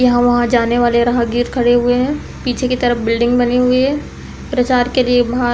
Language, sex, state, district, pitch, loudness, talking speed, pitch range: Hindi, female, Uttar Pradesh, Deoria, 245 Hz, -15 LUFS, 215 wpm, 240-250 Hz